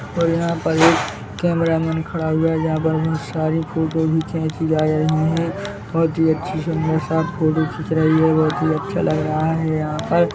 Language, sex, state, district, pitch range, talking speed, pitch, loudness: Hindi, male, Chhattisgarh, Bilaspur, 155-165 Hz, 220 wpm, 160 Hz, -19 LUFS